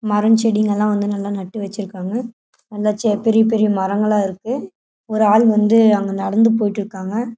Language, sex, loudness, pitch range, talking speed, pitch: Tamil, female, -17 LUFS, 205-225 Hz, 155 wpm, 210 Hz